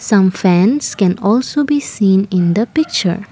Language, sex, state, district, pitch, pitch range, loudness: English, female, Assam, Kamrup Metropolitan, 205 Hz, 185-250 Hz, -14 LUFS